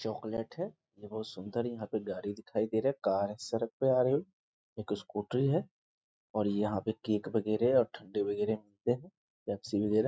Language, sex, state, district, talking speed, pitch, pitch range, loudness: Hindi, male, Bihar, East Champaran, 185 wpm, 110 Hz, 105-120 Hz, -34 LUFS